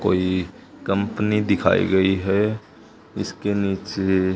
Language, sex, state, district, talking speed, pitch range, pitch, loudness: Hindi, male, Haryana, Charkhi Dadri, 95 wpm, 95-105 Hz, 100 Hz, -22 LUFS